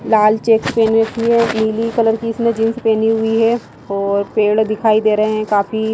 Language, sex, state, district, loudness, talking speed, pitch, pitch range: Hindi, female, Himachal Pradesh, Shimla, -15 LUFS, 190 wpm, 220 Hz, 215-230 Hz